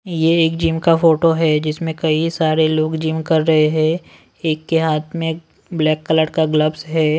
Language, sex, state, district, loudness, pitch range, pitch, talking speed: Hindi, male, Delhi, New Delhi, -17 LUFS, 155-165 Hz, 160 Hz, 190 wpm